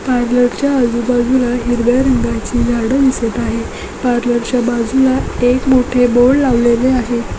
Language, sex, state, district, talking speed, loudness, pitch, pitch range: Marathi, female, Maharashtra, Dhule, 130 wpm, -14 LUFS, 245 Hz, 240-255 Hz